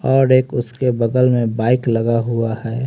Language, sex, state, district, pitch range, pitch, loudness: Hindi, male, Haryana, Rohtak, 115-130 Hz, 120 Hz, -17 LUFS